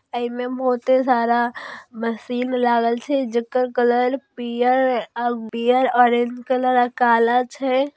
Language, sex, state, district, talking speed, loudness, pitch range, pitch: Maithili, female, Bihar, Darbhanga, 105 wpm, -20 LUFS, 240-255 Hz, 245 Hz